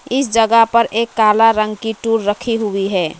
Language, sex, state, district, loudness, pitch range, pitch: Hindi, female, West Bengal, Alipurduar, -15 LUFS, 215-230 Hz, 225 Hz